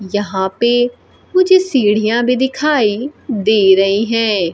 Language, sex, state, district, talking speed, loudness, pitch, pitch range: Hindi, female, Bihar, Kaimur, 120 wpm, -14 LUFS, 225 Hz, 205-260 Hz